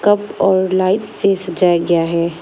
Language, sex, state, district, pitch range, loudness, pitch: Hindi, female, Arunachal Pradesh, Lower Dibang Valley, 170-195 Hz, -15 LUFS, 185 Hz